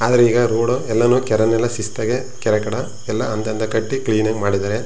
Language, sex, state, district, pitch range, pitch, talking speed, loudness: Kannada, male, Karnataka, Chamarajanagar, 110-120 Hz, 110 Hz, 185 wpm, -19 LUFS